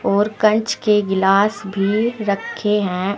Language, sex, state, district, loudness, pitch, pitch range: Hindi, female, Uttar Pradesh, Saharanpur, -18 LUFS, 205 Hz, 195-215 Hz